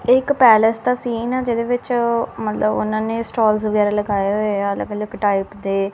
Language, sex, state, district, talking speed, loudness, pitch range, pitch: Hindi, female, Punjab, Kapurthala, 190 wpm, -18 LUFS, 205-235 Hz, 215 Hz